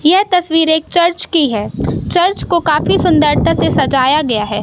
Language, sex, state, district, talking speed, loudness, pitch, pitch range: Hindi, male, Madhya Pradesh, Katni, 180 wpm, -13 LUFS, 315 Hz, 275-345 Hz